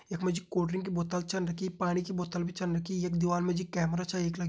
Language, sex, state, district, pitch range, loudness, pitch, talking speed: Hindi, male, Uttarakhand, Uttarkashi, 175-185 Hz, -32 LUFS, 180 Hz, 310 wpm